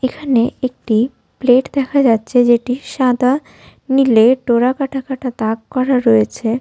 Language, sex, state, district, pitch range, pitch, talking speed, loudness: Bengali, female, West Bengal, Jhargram, 235-265 Hz, 250 Hz, 125 wpm, -15 LUFS